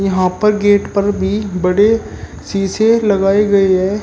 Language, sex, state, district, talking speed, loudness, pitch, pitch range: Hindi, male, Uttar Pradesh, Shamli, 150 wpm, -14 LUFS, 200 Hz, 195-210 Hz